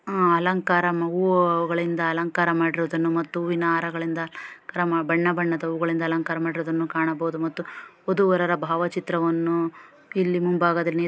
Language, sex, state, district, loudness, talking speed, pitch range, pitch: Kannada, female, Karnataka, Shimoga, -23 LUFS, 105 wpm, 165-175 Hz, 170 Hz